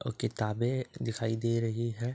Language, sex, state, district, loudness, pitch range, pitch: Hindi, male, Uttar Pradesh, Etah, -32 LUFS, 115-120 Hz, 115 Hz